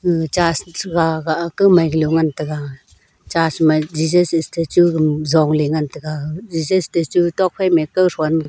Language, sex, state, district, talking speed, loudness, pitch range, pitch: Wancho, female, Arunachal Pradesh, Longding, 150 wpm, -17 LUFS, 155-175 Hz, 160 Hz